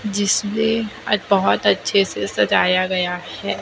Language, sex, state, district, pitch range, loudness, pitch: Hindi, female, Chhattisgarh, Raipur, 180-210 Hz, -19 LUFS, 195 Hz